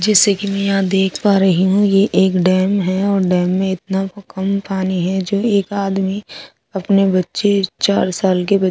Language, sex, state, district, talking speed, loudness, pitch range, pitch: Hindi, female, Odisha, Sambalpur, 195 wpm, -16 LUFS, 190-200 Hz, 195 Hz